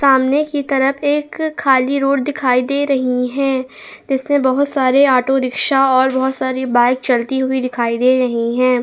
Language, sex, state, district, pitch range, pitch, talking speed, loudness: Hindi, female, Goa, North and South Goa, 255-275 Hz, 265 Hz, 170 wpm, -15 LUFS